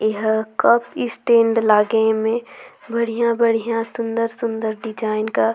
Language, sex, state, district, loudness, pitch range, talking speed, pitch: Surgujia, female, Chhattisgarh, Sarguja, -19 LUFS, 220-235 Hz, 95 wpm, 225 Hz